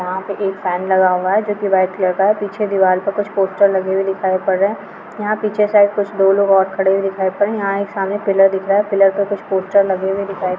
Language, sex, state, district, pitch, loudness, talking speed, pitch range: Hindi, female, Jharkhand, Jamtara, 195 Hz, -16 LUFS, 300 wpm, 190-200 Hz